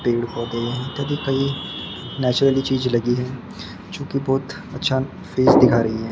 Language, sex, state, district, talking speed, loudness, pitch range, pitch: Hindi, male, Maharashtra, Gondia, 165 wpm, -21 LUFS, 120-135 Hz, 130 Hz